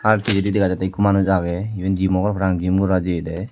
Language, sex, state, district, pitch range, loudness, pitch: Chakma, male, Tripura, Dhalai, 95-100 Hz, -19 LUFS, 95 Hz